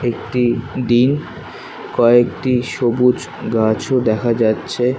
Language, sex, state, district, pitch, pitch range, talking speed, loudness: Bengali, male, West Bengal, Kolkata, 120 Hz, 120-125 Hz, 85 wpm, -16 LUFS